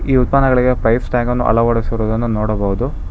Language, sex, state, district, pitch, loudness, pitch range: Kannada, male, Karnataka, Bangalore, 115 Hz, -16 LUFS, 110-125 Hz